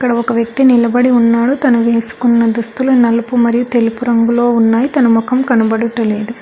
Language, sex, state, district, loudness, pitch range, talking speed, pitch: Telugu, female, Telangana, Hyderabad, -12 LUFS, 230-245 Hz, 150 wpm, 235 Hz